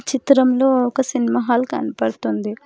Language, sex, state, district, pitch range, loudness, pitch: Telugu, female, Telangana, Hyderabad, 230-265 Hz, -18 LUFS, 250 Hz